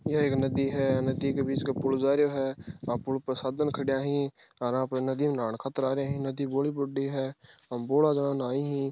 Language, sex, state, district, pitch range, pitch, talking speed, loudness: Marwari, male, Rajasthan, Churu, 130-140 Hz, 135 Hz, 235 wpm, -29 LUFS